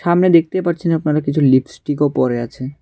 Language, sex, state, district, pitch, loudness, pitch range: Bengali, male, Tripura, West Tripura, 150 Hz, -16 LUFS, 135-170 Hz